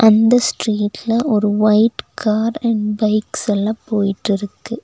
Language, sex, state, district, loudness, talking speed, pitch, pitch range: Tamil, female, Tamil Nadu, Nilgiris, -17 LUFS, 110 wpm, 215 Hz, 210-230 Hz